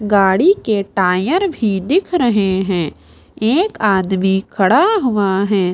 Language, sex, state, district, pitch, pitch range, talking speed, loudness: Hindi, female, Bihar, Kaimur, 205 Hz, 190-295 Hz, 125 wpm, -15 LUFS